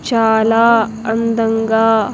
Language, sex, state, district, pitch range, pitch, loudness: Telugu, female, Andhra Pradesh, Sri Satya Sai, 225-230 Hz, 225 Hz, -14 LUFS